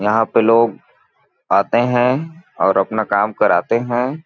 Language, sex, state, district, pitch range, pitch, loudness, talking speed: Hindi, male, Chhattisgarh, Balrampur, 110-125 Hz, 115 Hz, -16 LUFS, 140 wpm